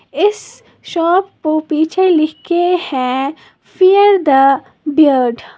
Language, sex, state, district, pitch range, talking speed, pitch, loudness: Hindi, female, Uttar Pradesh, Lalitpur, 275-365 Hz, 120 wpm, 315 Hz, -13 LUFS